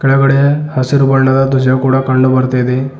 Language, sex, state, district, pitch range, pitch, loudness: Kannada, male, Karnataka, Bidar, 130-135 Hz, 135 Hz, -11 LUFS